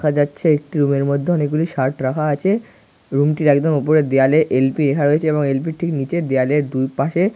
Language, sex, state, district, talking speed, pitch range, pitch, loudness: Bengali, male, West Bengal, North 24 Parganas, 210 wpm, 140-155 Hz, 145 Hz, -18 LUFS